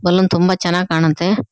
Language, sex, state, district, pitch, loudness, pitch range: Kannada, female, Karnataka, Shimoga, 180 Hz, -15 LUFS, 175-185 Hz